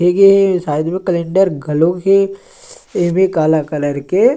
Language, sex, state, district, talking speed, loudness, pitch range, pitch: Chhattisgarhi, male, Chhattisgarh, Sarguja, 135 wpm, -14 LUFS, 155-195 Hz, 180 Hz